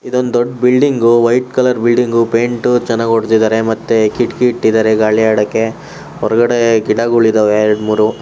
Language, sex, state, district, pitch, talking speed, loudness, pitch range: Kannada, male, Karnataka, Shimoga, 115 Hz, 145 wpm, -12 LUFS, 110-120 Hz